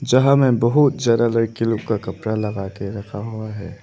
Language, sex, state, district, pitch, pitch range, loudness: Hindi, male, Arunachal Pradesh, Lower Dibang Valley, 115 Hz, 105-120 Hz, -19 LUFS